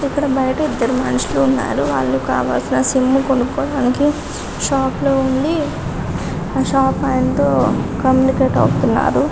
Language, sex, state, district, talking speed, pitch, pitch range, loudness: Telugu, female, Telangana, Karimnagar, 105 wpm, 265 Hz, 250-280 Hz, -17 LUFS